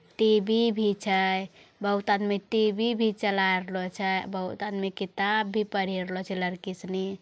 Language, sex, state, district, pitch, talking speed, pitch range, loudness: Angika, female, Bihar, Bhagalpur, 200 Hz, 190 wpm, 190-215 Hz, -27 LUFS